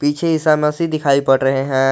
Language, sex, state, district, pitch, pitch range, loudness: Hindi, male, Jharkhand, Garhwa, 145 Hz, 135-155 Hz, -16 LUFS